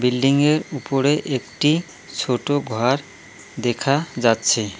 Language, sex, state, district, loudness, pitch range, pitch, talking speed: Bengali, male, West Bengal, Cooch Behar, -20 LUFS, 115-145 Hz, 130 Hz, 85 wpm